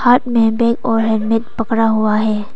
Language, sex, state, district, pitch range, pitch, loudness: Hindi, female, Arunachal Pradesh, Papum Pare, 220-235 Hz, 225 Hz, -15 LUFS